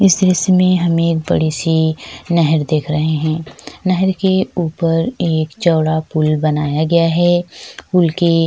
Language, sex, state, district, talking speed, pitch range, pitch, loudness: Hindi, female, Chhattisgarh, Sukma, 150 wpm, 155-180 Hz, 165 Hz, -15 LUFS